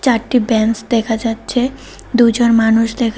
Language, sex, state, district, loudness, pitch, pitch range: Bengali, female, Tripura, West Tripura, -15 LUFS, 230 Hz, 225-245 Hz